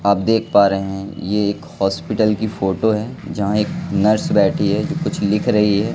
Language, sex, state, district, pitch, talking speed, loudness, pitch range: Hindi, male, Madhya Pradesh, Katni, 100 Hz, 210 wpm, -18 LUFS, 100-105 Hz